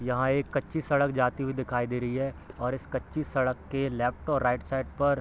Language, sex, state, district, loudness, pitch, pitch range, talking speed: Hindi, male, Bihar, East Champaran, -29 LUFS, 130 Hz, 125-140 Hz, 240 wpm